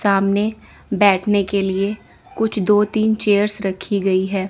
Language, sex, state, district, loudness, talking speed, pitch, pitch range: Hindi, female, Chandigarh, Chandigarh, -18 LUFS, 145 wpm, 200 Hz, 195-210 Hz